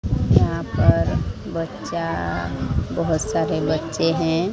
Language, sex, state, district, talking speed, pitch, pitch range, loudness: Hindi, female, Odisha, Sambalpur, 95 wpm, 160 Hz, 105-165 Hz, -22 LUFS